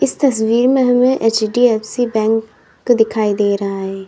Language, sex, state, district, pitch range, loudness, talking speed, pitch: Hindi, female, Uttar Pradesh, Lalitpur, 210-245 Hz, -15 LUFS, 130 wpm, 225 Hz